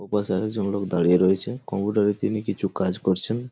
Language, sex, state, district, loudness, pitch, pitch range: Bengali, male, West Bengal, Paschim Medinipur, -24 LUFS, 100 Hz, 95-105 Hz